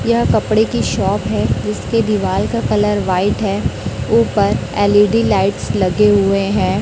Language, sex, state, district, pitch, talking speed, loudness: Hindi, female, Chhattisgarh, Raipur, 195 Hz, 150 wpm, -15 LUFS